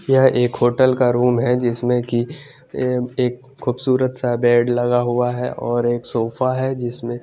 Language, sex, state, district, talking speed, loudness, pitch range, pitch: Hindi, male, Chandigarh, Chandigarh, 165 wpm, -19 LUFS, 120-130 Hz, 125 Hz